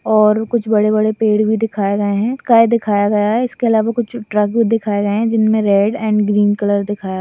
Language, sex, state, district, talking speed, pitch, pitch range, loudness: Hindi, female, Bihar, Purnia, 225 wpm, 215 Hz, 205-225 Hz, -15 LUFS